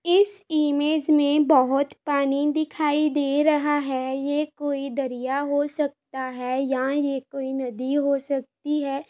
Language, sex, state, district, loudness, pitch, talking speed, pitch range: Hindi, female, Uttar Pradesh, Varanasi, -24 LUFS, 285 Hz, 145 wpm, 270-295 Hz